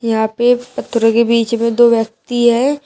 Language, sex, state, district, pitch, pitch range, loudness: Hindi, female, Uttar Pradesh, Shamli, 235 Hz, 230-240 Hz, -14 LUFS